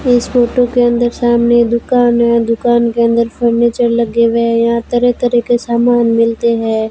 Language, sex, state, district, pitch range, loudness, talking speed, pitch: Hindi, female, Rajasthan, Bikaner, 235-240 Hz, -12 LUFS, 180 wpm, 235 Hz